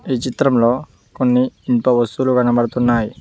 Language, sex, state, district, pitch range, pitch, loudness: Telugu, male, Telangana, Mahabubabad, 120-130 Hz, 125 Hz, -17 LUFS